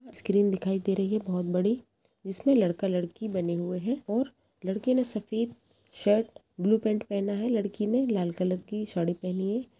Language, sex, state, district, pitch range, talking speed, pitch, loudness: Hindi, female, Uttar Pradesh, Jalaun, 185-225 Hz, 190 wpm, 205 Hz, -29 LUFS